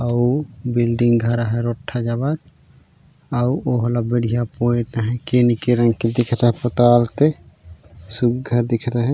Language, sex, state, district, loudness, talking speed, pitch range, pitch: Chhattisgarhi, male, Chhattisgarh, Raigarh, -19 LUFS, 140 wpm, 115-125 Hz, 120 Hz